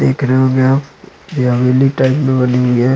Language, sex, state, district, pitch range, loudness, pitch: Hindi, male, Bihar, Supaul, 125-135 Hz, -13 LUFS, 130 Hz